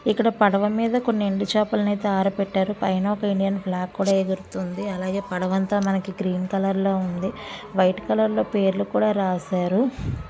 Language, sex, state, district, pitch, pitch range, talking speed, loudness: Telugu, female, Andhra Pradesh, Visakhapatnam, 195 Hz, 185-205 Hz, 165 wpm, -23 LUFS